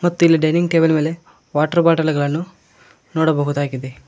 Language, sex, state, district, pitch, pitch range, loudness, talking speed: Kannada, male, Karnataka, Koppal, 160 Hz, 145-165 Hz, -17 LUFS, 120 wpm